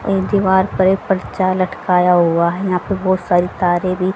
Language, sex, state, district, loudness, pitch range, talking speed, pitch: Hindi, female, Haryana, Jhajjar, -16 LUFS, 180-190 Hz, 200 wpm, 185 Hz